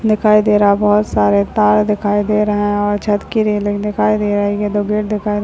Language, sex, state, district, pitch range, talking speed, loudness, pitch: Hindi, male, Uttarakhand, Tehri Garhwal, 205-210 Hz, 240 wpm, -15 LUFS, 205 Hz